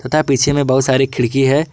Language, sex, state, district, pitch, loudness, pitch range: Hindi, male, Jharkhand, Garhwa, 135 Hz, -15 LUFS, 130-145 Hz